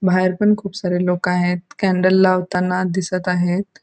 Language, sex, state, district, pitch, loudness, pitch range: Marathi, female, Goa, North and South Goa, 185 Hz, -18 LUFS, 180-185 Hz